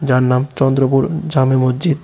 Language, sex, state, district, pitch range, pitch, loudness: Bengali, male, Tripura, West Tripura, 130-145 Hz, 135 Hz, -15 LUFS